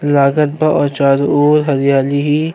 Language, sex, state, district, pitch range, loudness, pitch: Bhojpuri, male, Uttar Pradesh, Deoria, 140-150 Hz, -13 LUFS, 145 Hz